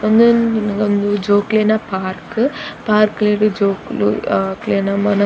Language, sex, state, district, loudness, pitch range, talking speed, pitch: Tulu, female, Karnataka, Dakshina Kannada, -16 LUFS, 200-215 Hz, 100 wpm, 210 Hz